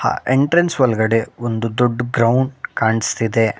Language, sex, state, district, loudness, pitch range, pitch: Kannada, male, Karnataka, Bangalore, -17 LUFS, 115-130 Hz, 120 Hz